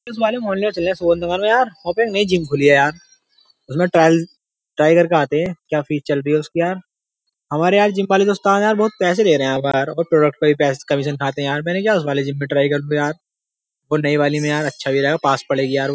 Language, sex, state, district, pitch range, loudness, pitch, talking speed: Hindi, male, Uttar Pradesh, Jyotiba Phule Nagar, 145-195 Hz, -17 LUFS, 155 Hz, 280 wpm